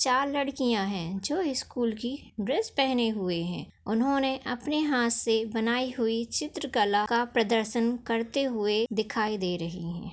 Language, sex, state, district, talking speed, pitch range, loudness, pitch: Hindi, female, Maharashtra, Nagpur, 155 wpm, 215-265 Hz, -28 LUFS, 235 Hz